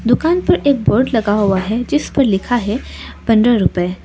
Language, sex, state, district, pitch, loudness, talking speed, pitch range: Hindi, female, Arunachal Pradesh, Lower Dibang Valley, 240 Hz, -15 LUFS, 190 wpm, 205-270 Hz